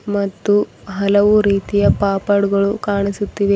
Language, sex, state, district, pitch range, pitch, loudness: Kannada, female, Karnataka, Bidar, 200-205 Hz, 200 Hz, -16 LUFS